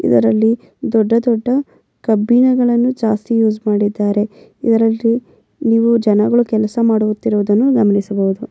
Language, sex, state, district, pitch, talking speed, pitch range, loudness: Kannada, female, Karnataka, Mysore, 225 Hz, 90 wpm, 210-235 Hz, -15 LUFS